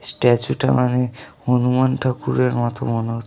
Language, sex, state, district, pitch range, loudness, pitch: Bengali, male, West Bengal, North 24 Parganas, 120-125 Hz, -19 LUFS, 125 Hz